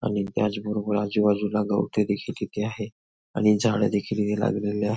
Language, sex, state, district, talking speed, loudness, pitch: Marathi, male, Maharashtra, Nagpur, 155 wpm, -25 LUFS, 105 Hz